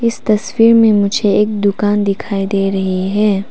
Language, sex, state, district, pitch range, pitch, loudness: Hindi, female, Arunachal Pradesh, Papum Pare, 195-215 Hz, 205 Hz, -14 LUFS